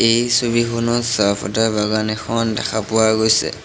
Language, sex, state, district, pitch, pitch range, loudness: Assamese, male, Assam, Sonitpur, 110 Hz, 110-115 Hz, -17 LUFS